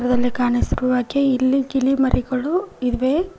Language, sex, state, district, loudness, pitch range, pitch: Kannada, female, Karnataka, Koppal, -20 LUFS, 250-275 Hz, 260 Hz